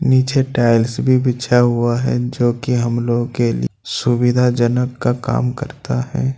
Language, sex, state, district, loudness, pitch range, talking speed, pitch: Hindi, male, Jharkhand, Ranchi, -17 LUFS, 120-125 Hz, 150 wpm, 120 Hz